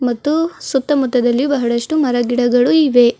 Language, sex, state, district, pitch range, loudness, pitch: Kannada, female, Karnataka, Bidar, 245-290 Hz, -15 LUFS, 255 Hz